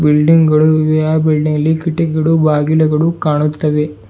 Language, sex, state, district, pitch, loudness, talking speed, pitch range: Kannada, male, Karnataka, Bidar, 155 Hz, -13 LUFS, 130 wpm, 150-160 Hz